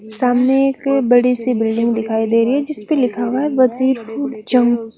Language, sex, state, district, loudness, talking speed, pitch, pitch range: Hindi, female, Chandigarh, Chandigarh, -16 LUFS, 145 wpm, 245 Hz, 230-265 Hz